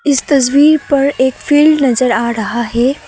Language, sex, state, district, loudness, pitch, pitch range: Hindi, female, Assam, Kamrup Metropolitan, -12 LUFS, 265 Hz, 240-285 Hz